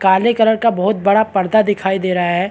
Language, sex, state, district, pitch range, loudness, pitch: Hindi, male, Chhattisgarh, Bastar, 190-220 Hz, -15 LUFS, 200 Hz